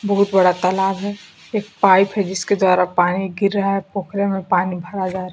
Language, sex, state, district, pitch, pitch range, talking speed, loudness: Hindi, female, Bihar, Kaimur, 195 Hz, 185-200 Hz, 205 wpm, -18 LUFS